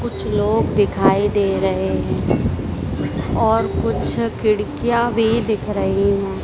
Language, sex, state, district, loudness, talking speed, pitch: Hindi, female, Madhya Pradesh, Dhar, -19 LUFS, 120 wpm, 195 Hz